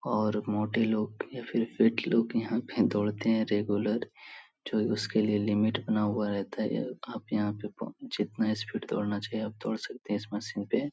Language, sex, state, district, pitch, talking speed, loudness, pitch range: Hindi, male, Bihar, Supaul, 105 Hz, 185 wpm, -31 LUFS, 105-115 Hz